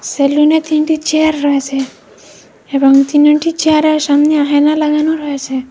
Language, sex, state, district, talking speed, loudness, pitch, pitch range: Bengali, female, Assam, Hailakandi, 115 wpm, -12 LUFS, 300 Hz, 280-310 Hz